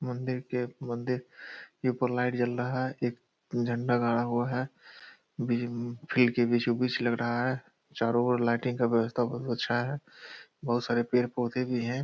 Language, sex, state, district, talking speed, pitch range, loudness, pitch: Hindi, male, Bihar, Purnia, 185 wpm, 120-125 Hz, -30 LUFS, 120 Hz